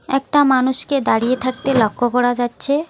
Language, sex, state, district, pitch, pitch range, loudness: Bengali, female, West Bengal, Alipurduar, 260 Hz, 245-275 Hz, -17 LUFS